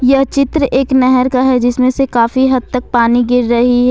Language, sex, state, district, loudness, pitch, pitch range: Hindi, female, Jharkhand, Ranchi, -12 LUFS, 255 Hz, 245-265 Hz